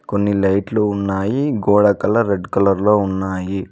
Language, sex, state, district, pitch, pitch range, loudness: Telugu, male, Telangana, Mahabubabad, 100 Hz, 95-105 Hz, -17 LUFS